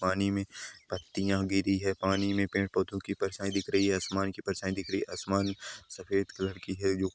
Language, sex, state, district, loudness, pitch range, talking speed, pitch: Hindi, male, Chhattisgarh, Balrampur, -32 LUFS, 95-100 Hz, 225 wpm, 95 Hz